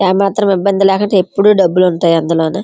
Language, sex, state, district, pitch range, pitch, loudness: Telugu, female, Andhra Pradesh, Srikakulam, 180-200 Hz, 195 Hz, -12 LUFS